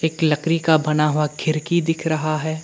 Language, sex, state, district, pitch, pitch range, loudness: Hindi, male, Arunachal Pradesh, Lower Dibang Valley, 155 Hz, 155-165 Hz, -20 LUFS